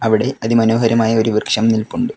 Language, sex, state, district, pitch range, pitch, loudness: Malayalam, male, Kerala, Kollam, 110-115 Hz, 115 Hz, -15 LUFS